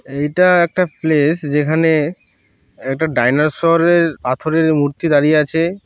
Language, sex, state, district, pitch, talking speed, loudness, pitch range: Bengali, male, West Bengal, Purulia, 155 Hz, 100 wpm, -15 LUFS, 145-165 Hz